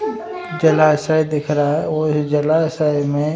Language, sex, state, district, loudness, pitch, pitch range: Hindi, male, Bihar, Jahanabad, -17 LUFS, 155 Hz, 150-160 Hz